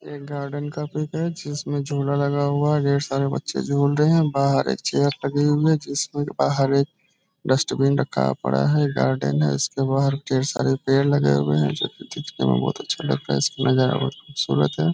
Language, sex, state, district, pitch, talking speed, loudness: Hindi, male, Bihar, Araria, 140 Hz, 215 wpm, -22 LUFS